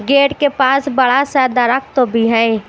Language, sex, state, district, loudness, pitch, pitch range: Hindi, female, Chandigarh, Chandigarh, -14 LUFS, 260 Hz, 235-275 Hz